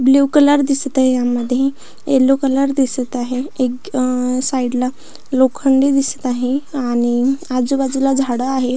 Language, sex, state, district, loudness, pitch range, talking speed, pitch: Marathi, female, Maharashtra, Pune, -16 LUFS, 250-275 Hz, 145 wpm, 260 Hz